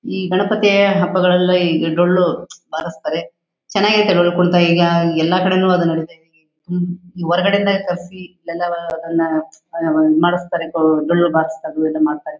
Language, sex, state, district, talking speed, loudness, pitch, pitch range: Kannada, female, Karnataka, Shimoga, 130 wpm, -16 LUFS, 170 Hz, 160-180 Hz